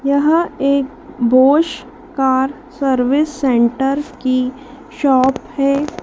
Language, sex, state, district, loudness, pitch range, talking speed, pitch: Hindi, female, Madhya Pradesh, Dhar, -16 LUFS, 260-295 Hz, 90 wpm, 275 Hz